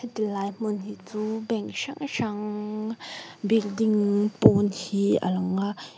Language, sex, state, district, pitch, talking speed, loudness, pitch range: Mizo, female, Mizoram, Aizawl, 210 Hz, 140 wpm, -26 LUFS, 205-220 Hz